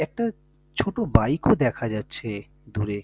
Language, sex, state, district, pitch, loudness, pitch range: Bengali, male, West Bengal, North 24 Parganas, 140 Hz, -25 LUFS, 110-155 Hz